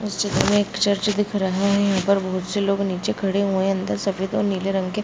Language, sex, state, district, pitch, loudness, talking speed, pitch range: Hindi, female, Bihar, Bhagalpur, 195 Hz, -21 LUFS, 260 wpm, 190-200 Hz